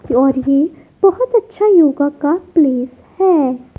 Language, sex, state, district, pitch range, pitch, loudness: Hindi, female, Madhya Pradesh, Dhar, 270-380 Hz, 300 Hz, -14 LUFS